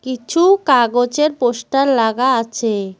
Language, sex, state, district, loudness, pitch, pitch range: Bengali, female, West Bengal, Cooch Behar, -15 LUFS, 250 Hz, 230-275 Hz